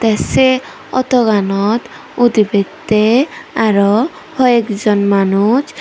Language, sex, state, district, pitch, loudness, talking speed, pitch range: Chakma, female, Tripura, Dhalai, 220 Hz, -13 LUFS, 70 wpm, 205-255 Hz